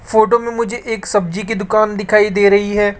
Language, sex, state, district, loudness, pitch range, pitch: Hindi, male, Rajasthan, Jaipur, -15 LUFS, 205-225 Hz, 210 Hz